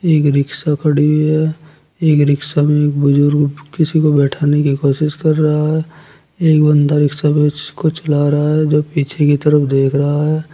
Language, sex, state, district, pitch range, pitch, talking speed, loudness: Hindi, male, Uttar Pradesh, Saharanpur, 145-155 Hz, 150 Hz, 180 wpm, -14 LUFS